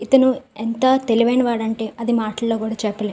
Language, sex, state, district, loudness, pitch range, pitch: Telugu, female, Andhra Pradesh, Visakhapatnam, -19 LUFS, 220-250 Hz, 230 Hz